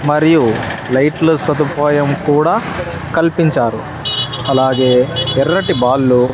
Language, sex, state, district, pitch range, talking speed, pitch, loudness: Telugu, male, Andhra Pradesh, Sri Satya Sai, 130-150 Hz, 85 wpm, 140 Hz, -14 LUFS